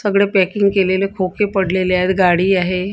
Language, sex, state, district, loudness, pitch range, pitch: Marathi, female, Maharashtra, Gondia, -16 LUFS, 185-200 Hz, 190 Hz